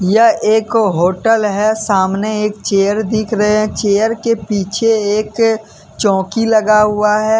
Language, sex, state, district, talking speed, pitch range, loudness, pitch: Hindi, male, Jharkhand, Deoghar, 145 wpm, 205-220 Hz, -14 LUFS, 215 Hz